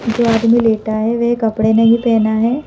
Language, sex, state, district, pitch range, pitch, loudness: Hindi, female, Madhya Pradesh, Bhopal, 220-235 Hz, 225 Hz, -14 LUFS